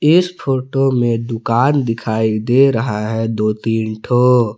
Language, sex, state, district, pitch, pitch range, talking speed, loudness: Hindi, male, Jharkhand, Palamu, 115 Hz, 110-135 Hz, 145 wpm, -16 LUFS